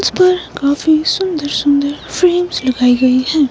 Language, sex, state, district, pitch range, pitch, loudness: Hindi, female, Himachal Pradesh, Shimla, 280-355 Hz, 295 Hz, -14 LUFS